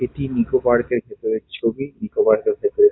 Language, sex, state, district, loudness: Bengali, male, West Bengal, Kolkata, -20 LUFS